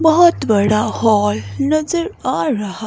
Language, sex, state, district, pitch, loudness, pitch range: Hindi, female, Himachal Pradesh, Shimla, 225 Hz, -16 LUFS, 210-320 Hz